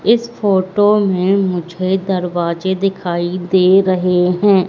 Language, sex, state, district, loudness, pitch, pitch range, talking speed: Hindi, female, Madhya Pradesh, Katni, -15 LUFS, 185 Hz, 180-195 Hz, 115 wpm